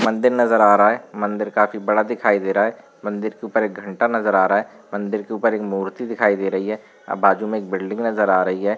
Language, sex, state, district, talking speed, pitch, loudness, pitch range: Hindi, male, Uttar Pradesh, Varanasi, 265 wpm, 105 Hz, -19 LUFS, 100-110 Hz